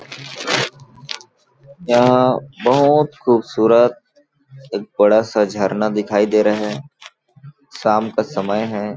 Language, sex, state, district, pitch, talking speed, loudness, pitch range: Hindi, male, Chhattisgarh, Balrampur, 115 Hz, 95 wpm, -17 LUFS, 105-140 Hz